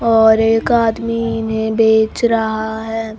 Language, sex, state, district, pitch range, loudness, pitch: Hindi, female, Bihar, Kaimur, 220-230 Hz, -15 LUFS, 225 Hz